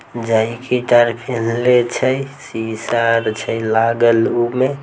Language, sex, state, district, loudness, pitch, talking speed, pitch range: Maithili, male, Bihar, Samastipur, -17 LUFS, 120 Hz, 125 wpm, 115-125 Hz